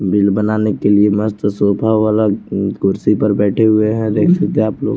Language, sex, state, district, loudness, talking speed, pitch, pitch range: Hindi, male, Chandigarh, Chandigarh, -14 LUFS, 205 wpm, 105 Hz, 100-110 Hz